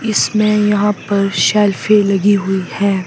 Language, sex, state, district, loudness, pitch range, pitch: Hindi, female, Himachal Pradesh, Shimla, -14 LUFS, 195-210 Hz, 205 Hz